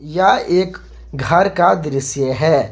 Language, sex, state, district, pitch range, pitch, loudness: Hindi, male, Jharkhand, Garhwa, 140-180 Hz, 160 Hz, -16 LUFS